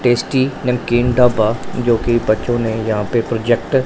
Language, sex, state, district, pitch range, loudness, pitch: Hindi, male, Punjab, Pathankot, 115-125 Hz, -16 LUFS, 120 Hz